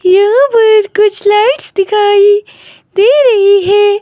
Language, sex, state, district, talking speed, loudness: Hindi, female, Himachal Pradesh, Shimla, 120 wpm, -9 LUFS